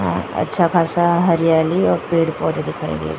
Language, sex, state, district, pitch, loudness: Hindi, female, Uttar Pradesh, Jyotiba Phule Nagar, 165 Hz, -18 LUFS